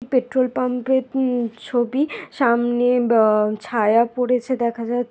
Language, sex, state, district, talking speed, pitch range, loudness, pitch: Bengali, female, West Bengal, Malda, 115 wpm, 235-255 Hz, -20 LUFS, 245 Hz